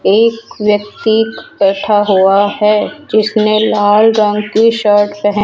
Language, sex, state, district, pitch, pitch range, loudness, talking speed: Hindi, female, Rajasthan, Jaipur, 210 Hz, 205-220 Hz, -12 LUFS, 130 wpm